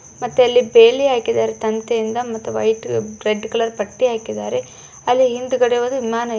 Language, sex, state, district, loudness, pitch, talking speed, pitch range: Kannada, female, Karnataka, Bijapur, -18 LUFS, 235 Hz, 130 wpm, 220-255 Hz